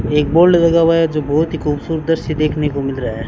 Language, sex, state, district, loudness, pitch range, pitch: Hindi, male, Rajasthan, Bikaner, -15 LUFS, 145-165 Hz, 155 Hz